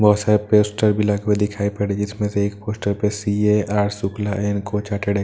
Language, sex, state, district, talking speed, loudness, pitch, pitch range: Hindi, male, Bihar, Katihar, 230 wpm, -20 LUFS, 105 Hz, 100-105 Hz